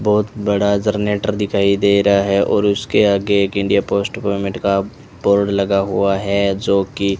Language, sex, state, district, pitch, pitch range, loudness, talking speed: Hindi, male, Rajasthan, Bikaner, 100 Hz, 100-105 Hz, -17 LUFS, 185 wpm